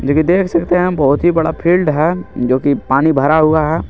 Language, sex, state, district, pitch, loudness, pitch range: Hindi, male, Jharkhand, Garhwa, 160 Hz, -13 LUFS, 145-175 Hz